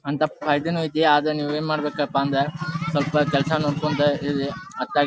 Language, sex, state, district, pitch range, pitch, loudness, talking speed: Kannada, male, Karnataka, Dharwad, 145-155 Hz, 150 Hz, -23 LUFS, 140 wpm